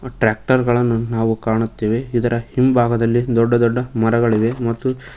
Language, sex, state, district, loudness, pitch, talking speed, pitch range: Kannada, male, Karnataka, Koppal, -17 LUFS, 120 Hz, 115 wpm, 115-125 Hz